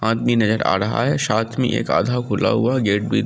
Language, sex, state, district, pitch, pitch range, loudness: Angika, male, Bihar, Samastipur, 115 Hz, 110-125 Hz, -19 LUFS